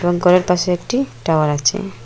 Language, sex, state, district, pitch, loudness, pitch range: Bengali, female, Assam, Hailakandi, 180 Hz, -17 LUFS, 160-190 Hz